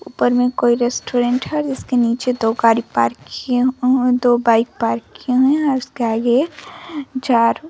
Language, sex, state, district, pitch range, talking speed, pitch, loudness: Hindi, female, Bihar, Vaishali, 235-260 Hz, 195 wpm, 245 Hz, -17 LUFS